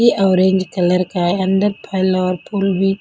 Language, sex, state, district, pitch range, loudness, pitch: Hindi, female, Punjab, Kapurthala, 185-195 Hz, -16 LUFS, 190 Hz